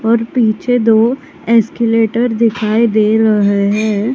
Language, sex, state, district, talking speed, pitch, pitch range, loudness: Hindi, female, Maharashtra, Mumbai Suburban, 115 wpm, 225 Hz, 215-235 Hz, -13 LUFS